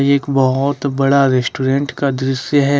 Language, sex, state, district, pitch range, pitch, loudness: Hindi, male, Jharkhand, Ranchi, 135-140 Hz, 140 Hz, -16 LUFS